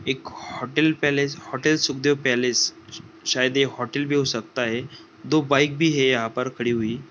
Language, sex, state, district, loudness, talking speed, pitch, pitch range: Hindi, male, Jharkhand, Sahebganj, -22 LUFS, 175 wpm, 135 Hz, 125-145 Hz